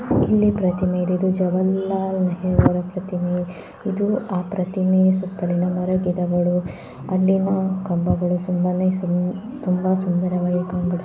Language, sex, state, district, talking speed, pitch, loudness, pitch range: Kannada, female, Karnataka, Dharwad, 110 wpm, 185 Hz, -21 LUFS, 180-190 Hz